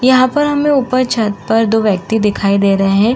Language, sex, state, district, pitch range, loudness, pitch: Hindi, female, Uttar Pradesh, Jalaun, 200-255 Hz, -13 LUFS, 225 Hz